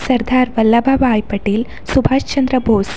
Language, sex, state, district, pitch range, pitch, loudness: Kannada, female, Karnataka, Dakshina Kannada, 220-255 Hz, 245 Hz, -15 LUFS